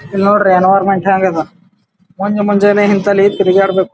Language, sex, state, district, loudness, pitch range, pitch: Kannada, male, Karnataka, Bijapur, -11 LUFS, 190-200 Hz, 195 Hz